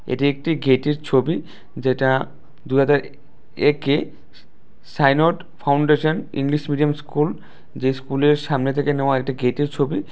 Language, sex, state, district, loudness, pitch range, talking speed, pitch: Bengali, male, Tripura, West Tripura, -20 LUFS, 135-150 Hz, 135 wpm, 145 Hz